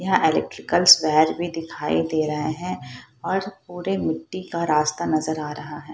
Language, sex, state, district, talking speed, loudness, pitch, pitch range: Hindi, female, Bihar, Purnia, 170 wpm, -22 LUFS, 155 Hz, 150-175 Hz